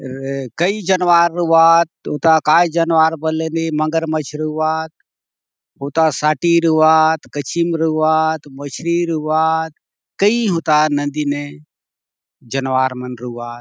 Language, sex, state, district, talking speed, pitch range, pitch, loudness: Halbi, male, Chhattisgarh, Bastar, 120 wpm, 145-165 Hz, 160 Hz, -16 LUFS